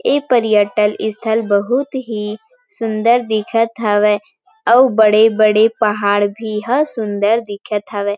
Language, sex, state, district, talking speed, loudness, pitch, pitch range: Chhattisgarhi, female, Chhattisgarh, Rajnandgaon, 115 wpm, -15 LUFS, 220 Hz, 210-230 Hz